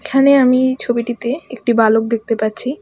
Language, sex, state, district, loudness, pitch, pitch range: Bengali, female, West Bengal, Alipurduar, -15 LUFS, 245 Hz, 230-265 Hz